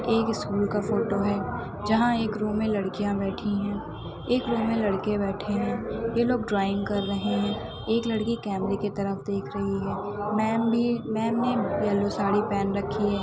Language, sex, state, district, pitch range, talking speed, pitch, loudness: Hindi, female, Chhattisgarh, Sukma, 200-225 Hz, 180 wpm, 205 Hz, -27 LUFS